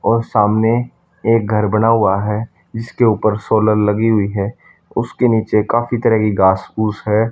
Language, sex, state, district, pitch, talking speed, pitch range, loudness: Hindi, male, Haryana, Charkhi Dadri, 110 Hz, 170 wpm, 105-115 Hz, -16 LUFS